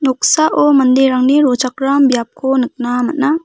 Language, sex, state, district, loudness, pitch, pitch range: Garo, female, Meghalaya, West Garo Hills, -13 LUFS, 265 Hz, 255-285 Hz